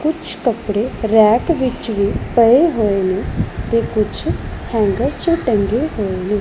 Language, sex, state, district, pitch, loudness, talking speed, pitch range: Punjabi, female, Punjab, Pathankot, 220 Hz, -17 LUFS, 140 wpm, 205-250 Hz